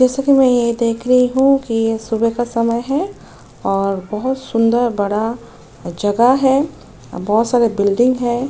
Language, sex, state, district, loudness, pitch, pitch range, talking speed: Hindi, female, Uttar Pradesh, Jyotiba Phule Nagar, -16 LUFS, 235 Hz, 225-255 Hz, 170 wpm